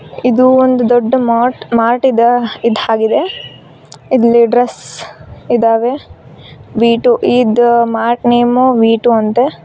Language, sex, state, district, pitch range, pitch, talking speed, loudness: Kannada, female, Karnataka, Koppal, 230-250 Hz, 240 Hz, 120 wpm, -11 LUFS